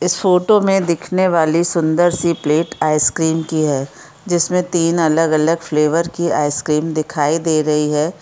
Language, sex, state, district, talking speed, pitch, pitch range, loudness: Hindi, female, Chhattisgarh, Jashpur, 160 wpm, 165 Hz, 155-175 Hz, -16 LUFS